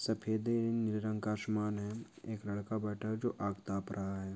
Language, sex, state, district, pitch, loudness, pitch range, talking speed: Hindi, male, Chhattisgarh, Bilaspur, 105 Hz, -37 LUFS, 100-110 Hz, 190 wpm